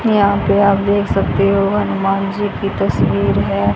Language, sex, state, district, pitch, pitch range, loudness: Hindi, female, Haryana, Rohtak, 195 Hz, 195-205 Hz, -15 LUFS